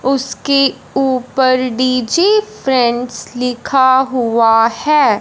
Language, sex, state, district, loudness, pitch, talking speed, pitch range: Hindi, male, Punjab, Fazilka, -14 LUFS, 255 Hz, 80 wpm, 245-270 Hz